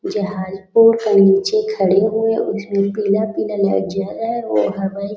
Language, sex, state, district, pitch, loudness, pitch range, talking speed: Hindi, female, Chhattisgarh, Raigarh, 205 Hz, -17 LUFS, 195-220 Hz, 175 wpm